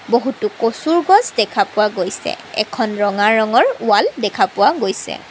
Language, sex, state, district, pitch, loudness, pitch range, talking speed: Assamese, female, Assam, Kamrup Metropolitan, 220 Hz, -16 LUFS, 210-255 Hz, 145 wpm